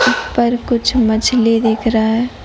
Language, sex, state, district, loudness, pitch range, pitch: Hindi, female, Odisha, Nuapada, -14 LUFS, 225-240 Hz, 235 Hz